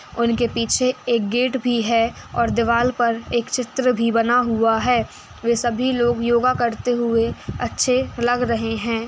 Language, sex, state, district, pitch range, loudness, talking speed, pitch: Hindi, female, Uttar Pradesh, Etah, 230-245 Hz, -20 LUFS, 165 wpm, 235 Hz